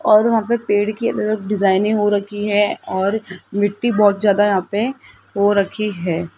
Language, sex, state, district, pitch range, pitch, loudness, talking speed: Hindi, female, Rajasthan, Jaipur, 200-215 Hz, 205 Hz, -18 LUFS, 190 wpm